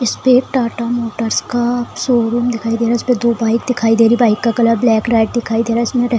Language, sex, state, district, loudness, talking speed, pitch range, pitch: Hindi, female, Bihar, Saran, -15 LUFS, 260 wpm, 230-240 Hz, 235 Hz